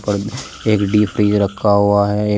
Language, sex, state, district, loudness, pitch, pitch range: Hindi, male, Uttar Pradesh, Shamli, -16 LUFS, 105 Hz, 100-105 Hz